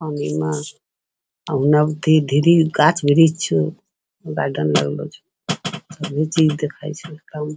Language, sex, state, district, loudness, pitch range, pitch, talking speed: Angika, female, Bihar, Bhagalpur, -19 LUFS, 135-155 Hz, 150 Hz, 70 wpm